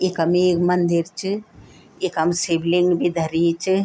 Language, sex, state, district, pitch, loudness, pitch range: Garhwali, female, Uttarakhand, Tehri Garhwal, 175 Hz, -20 LUFS, 170-185 Hz